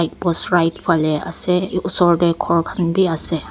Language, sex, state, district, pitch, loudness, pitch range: Nagamese, female, Nagaland, Dimapur, 170 Hz, -18 LUFS, 165-180 Hz